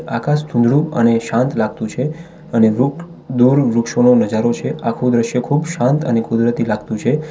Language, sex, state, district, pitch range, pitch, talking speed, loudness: Gujarati, male, Gujarat, Valsad, 115-145 Hz, 120 Hz, 155 wpm, -16 LUFS